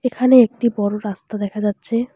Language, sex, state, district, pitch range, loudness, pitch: Bengali, female, West Bengal, Alipurduar, 210-250 Hz, -18 LUFS, 225 Hz